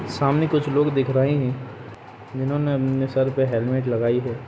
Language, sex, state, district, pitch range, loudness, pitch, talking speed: Hindi, male, Bihar, Gopalganj, 125-140 Hz, -22 LUFS, 130 Hz, 175 wpm